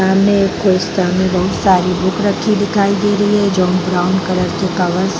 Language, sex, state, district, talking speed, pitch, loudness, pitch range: Hindi, female, Bihar, Vaishali, 185 wpm, 190 Hz, -14 LUFS, 180-200 Hz